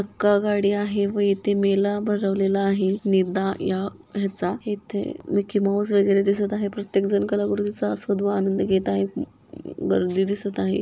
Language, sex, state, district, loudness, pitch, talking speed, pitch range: Marathi, female, Maharashtra, Dhule, -23 LUFS, 200 Hz, 155 wpm, 195-205 Hz